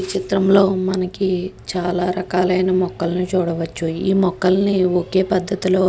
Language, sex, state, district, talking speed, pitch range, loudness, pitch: Telugu, female, Andhra Pradesh, Guntur, 120 wpm, 180-190 Hz, -19 LUFS, 185 Hz